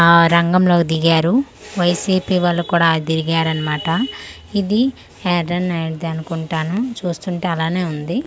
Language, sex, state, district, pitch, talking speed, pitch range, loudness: Telugu, female, Andhra Pradesh, Manyam, 170 Hz, 115 wpm, 165-185 Hz, -18 LUFS